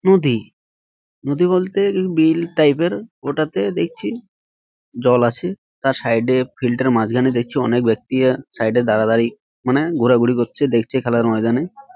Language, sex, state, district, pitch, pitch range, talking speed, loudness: Bengali, male, West Bengal, Malda, 125 Hz, 115-155 Hz, 155 wpm, -18 LUFS